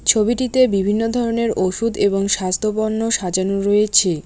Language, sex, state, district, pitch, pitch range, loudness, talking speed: Bengali, female, West Bengal, Alipurduar, 210 Hz, 195-225 Hz, -18 LUFS, 125 wpm